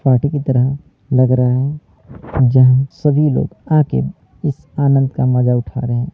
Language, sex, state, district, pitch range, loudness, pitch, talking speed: Hindi, male, Chhattisgarh, Sarguja, 125-145 Hz, -15 LUFS, 130 Hz, 175 wpm